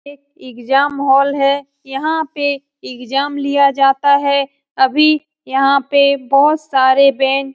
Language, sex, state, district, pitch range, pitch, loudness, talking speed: Hindi, female, Bihar, Lakhisarai, 275-285 Hz, 280 Hz, -14 LUFS, 125 wpm